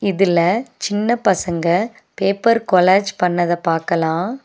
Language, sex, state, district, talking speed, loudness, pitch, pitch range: Tamil, female, Tamil Nadu, Nilgiris, 95 wpm, -17 LUFS, 190 Hz, 175-215 Hz